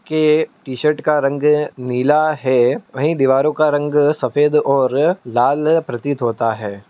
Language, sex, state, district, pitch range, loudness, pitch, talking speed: Hindi, male, Uttar Pradesh, Muzaffarnagar, 130-150 Hz, -16 LUFS, 145 Hz, 140 wpm